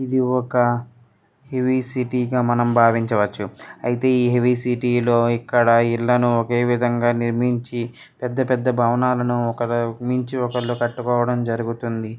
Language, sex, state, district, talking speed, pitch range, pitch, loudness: Telugu, male, Telangana, Karimnagar, 120 wpm, 120-125 Hz, 120 Hz, -20 LUFS